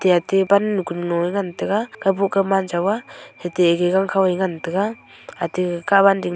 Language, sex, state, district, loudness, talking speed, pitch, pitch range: Wancho, female, Arunachal Pradesh, Longding, -20 LUFS, 200 wpm, 190 Hz, 175-195 Hz